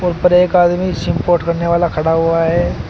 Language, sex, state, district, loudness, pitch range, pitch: Hindi, male, Uttar Pradesh, Shamli, -14 LUFS, 165-180 Hz, 175 Hz